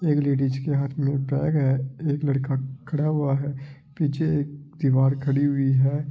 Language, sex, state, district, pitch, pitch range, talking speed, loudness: Marwari, male, Rajasthan, Nagaur, 140 Hz, 135-145 Hz, 175 wpm, -24 LUFS